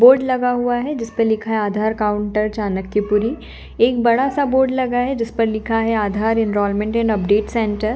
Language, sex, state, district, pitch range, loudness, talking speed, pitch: Hindi, female, Delhi, New Delhi, 210-245 Hz, -18 LUFS, 205 wpm, 225 Hz